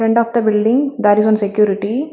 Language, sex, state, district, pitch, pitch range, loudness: English, female, Telangana, Hyderabad, 215 Hz, 210-235 Hz, -15 LUFS